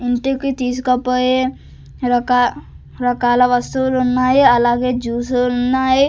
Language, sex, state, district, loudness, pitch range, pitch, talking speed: Telugu, female, Andhra Pradesh, Sri Satya Sai, -16 LUFS, 245-260 Hz, 250 Hz, 90 wpm